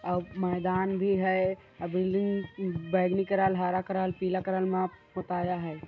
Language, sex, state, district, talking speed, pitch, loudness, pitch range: Chhattisgarhi, male, Chhattisgarh, Korba, 155 wpm, 185 Hz, -29 LUFS, 180-190 Hz